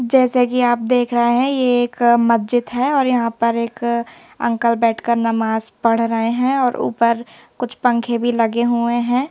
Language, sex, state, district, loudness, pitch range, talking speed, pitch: Hindi, female, Madhya Pradesh, Bhopal, -17 LUFS, 230-245 Hz, 180 wpm, 235 Hz